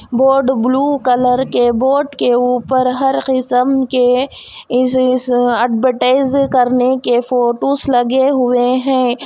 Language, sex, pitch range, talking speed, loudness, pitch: Hindi, female, 245-265 Hz, 125 wpm, -14 LUFS, 255 Hz